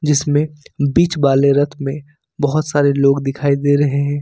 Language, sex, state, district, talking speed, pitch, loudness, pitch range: Hindi, male, Jharkhand, Ranchi, 170 wpm, 145 Hz, -16 LUFS, 140-150 Hz